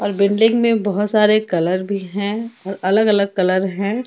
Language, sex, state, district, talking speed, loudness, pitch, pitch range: Hindi, female, Jharkhand, Ranchi, 190 wpm, -17 LUFS, 200 Hz, 195-215 Hz